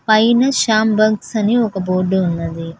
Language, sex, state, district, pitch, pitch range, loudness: Telugu, female, Telangana, Hyderabad, 215 Hz, 185-220 Hz, -16 LUFS